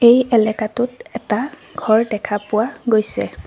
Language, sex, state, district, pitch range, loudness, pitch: Assamese, female, Assam, Sonitpur, 210-240 Hz, -18 LUFS, 220 Hz